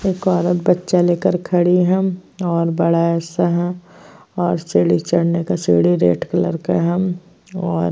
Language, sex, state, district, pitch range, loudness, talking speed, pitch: Hindi, female, Uttar Pradesh, Jyotiba Phule Nagar, 170-180 Hz, -17 LUFS, 160 wpm, 175 Hz